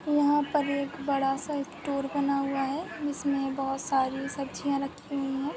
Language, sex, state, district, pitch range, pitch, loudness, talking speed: Hindi, female, Goa, North and South Goa, 275-290 Hz, 280 Hz, -29 LUFS, 160 wpm